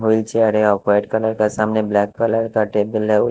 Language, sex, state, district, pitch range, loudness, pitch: Hindi, male, Chhattisgarh, Raipur, 105-110 Hz, -18 LUFS, 110 Hz